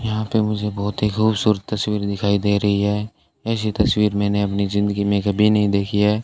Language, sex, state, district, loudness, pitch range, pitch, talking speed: Hindi, male, Rajasthan, Bikaner, -20 LUFS, 100-105 Hz, 105 Hz, 200 wpm